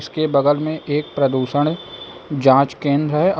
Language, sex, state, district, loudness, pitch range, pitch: Hindi, male, Uttar Pradesh, Lucknow, -18 LUFS, 140-155 Hz, 145 Hz